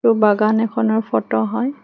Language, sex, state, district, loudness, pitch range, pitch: Assamese, female, Assam, Hailakandi, -18 LUFS, 205-230 Hz, 220 Hz